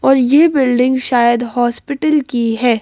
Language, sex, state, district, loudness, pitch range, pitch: Hindi, female, Madhya Pradesh, Bhopal, -14 LUFS, 240-275 Hz, 250 Hz